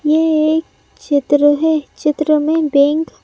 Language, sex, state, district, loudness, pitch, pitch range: Hindi, male, Madhya Pradesh, Bhopal, -15 LUFS, 305 Hz, 290-315 Hz